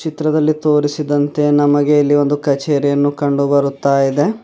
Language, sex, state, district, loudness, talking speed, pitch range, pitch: Kannada, male, Karnataka, Bidar, -15 LUFS, 135 wpm, 140-150 Hz, 145 Hz